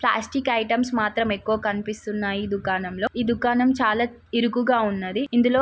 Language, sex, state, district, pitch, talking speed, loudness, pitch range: Telugu, female, Telangana, Nalgonda, 225 Hz, 140 wpm, -23 LUFS, 210-240 Hz